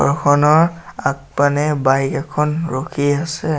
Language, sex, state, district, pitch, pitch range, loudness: Assamese, male, Assam, Sonitpur, 150 Hz, 140-160 Hz, -17 LUFS